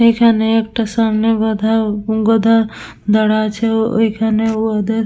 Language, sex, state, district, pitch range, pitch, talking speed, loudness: Bengali, female, West Bengal, Dakshin Dinajpur, 215-225 Hz, 220 Hz, 130 wpm, -15 LUFS